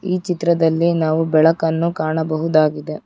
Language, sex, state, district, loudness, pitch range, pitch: Kannada, female, Karnataka, Bangalore, -17 LUFS, 155-170 Hz, 160 Hz